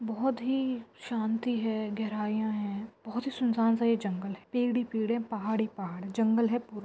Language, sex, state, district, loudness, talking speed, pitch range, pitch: Hindi, female, Maharashtra, Nagpur, -31 LUFS, 200 wpm, 215-235 Hz, 225 Hz